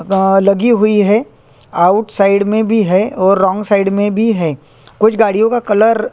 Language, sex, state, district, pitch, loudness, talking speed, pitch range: Hindi, male, Chhattisgarh, Korba, 205 Hz, -12 LUFS, 185 wpm, 190-220 Hz